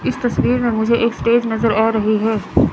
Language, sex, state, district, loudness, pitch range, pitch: Hindi, female, Chandigarh, Chandigarh, -17 LUFS, 220-235 Hz, 230 Hz